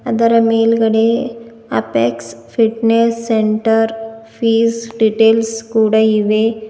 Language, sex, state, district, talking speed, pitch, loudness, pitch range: Kannada, female, Karnataka, Bidar, 80 wpm, 225 Hz, -14 LUFS, 220-230 Hz